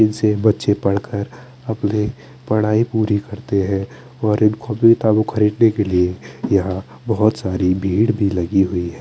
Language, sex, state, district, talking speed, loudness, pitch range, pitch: Hindi, male, Chandigarh, Chandigarh, 155 wpm, -18 LUFS, 100-110 Hz, 105 Hz